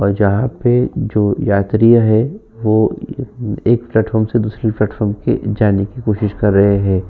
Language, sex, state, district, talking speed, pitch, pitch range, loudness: Hindi, male, Uttar Pradesh, Jyotiba Phule Nagar, 150 wpm, 110 Hz, 105-120 Hz, -15 LUFS